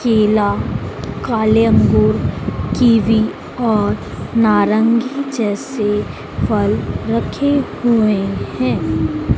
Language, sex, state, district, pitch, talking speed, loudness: Hindi, female, Madhya Pradesh, Dhar, 210 Hz, 70 wpm, -16 LUFS